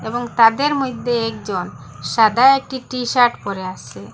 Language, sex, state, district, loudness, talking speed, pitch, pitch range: Bengali, female, Assam, Hailakandi, -17 LUFS, 130 wpm, 235 Hz, 220-255 Hz